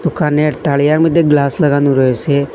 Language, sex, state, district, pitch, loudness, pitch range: Bengali, male, Assam, Hailakandi, 150 Hz, -13 LUFS, 140-155 Hz